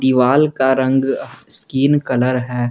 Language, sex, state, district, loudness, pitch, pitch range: Hindi, male, Jharkhand, Garhwa, -16 LUFS, 130 Hz, 125-135 Hz